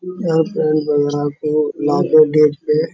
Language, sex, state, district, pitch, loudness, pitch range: Hindi, male, Uttar Pradesh, Budaun, 150 Hz, -16 LUFS, 150-155 Hz